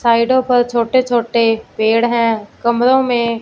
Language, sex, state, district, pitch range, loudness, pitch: Hindi, female, Punjab, Fazilka, 230-245 Hz, -15 LUFS, 235 Hz